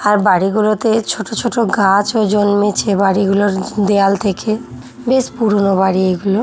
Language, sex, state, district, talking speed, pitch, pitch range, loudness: Bengali, female, West Bengal, Jhargram, 130 wpm, 205 Hz, 195-215 Hz, -14 LUFS